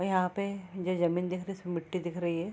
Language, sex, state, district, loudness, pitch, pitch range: Hindi, female, Bihar, Araria, -33 LUFS, 180 Hz, 175-190 Hz